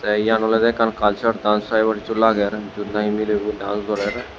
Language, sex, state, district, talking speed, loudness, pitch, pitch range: Chakma, male, Tripura, West Tripura, 190 wpm, -20 LUFS, 105 Hz, 105-110 Hz